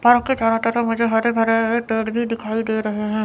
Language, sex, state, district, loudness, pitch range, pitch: Hindi, female, Chandigarh, Chandigarh, -19 LUFS, 225-235 Hz, 225 Hz